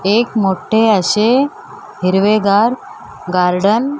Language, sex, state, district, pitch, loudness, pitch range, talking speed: Marathi, female, Maharashtra, Mumbai Suburban, 215 Hz, -14 LUFS, 195-245 Hz, 90 wpm